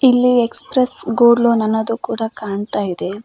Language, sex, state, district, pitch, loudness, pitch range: Kannada, female, Karnataka, Koppal, 230 Hz, -16 LUFS, 215-245 Hz